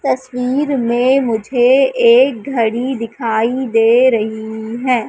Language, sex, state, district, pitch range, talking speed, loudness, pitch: Hindi, female, Madhya Pradesh, Katni, 230-260 Hz, 105 wpm, -14 LUFS, 245 Hz